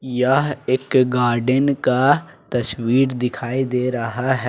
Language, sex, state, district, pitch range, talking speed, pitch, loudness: Hindi, male, Jharkhand, Ranchi, 125-130 Hz, 120 wpm, 130 Hz, -19 LUFS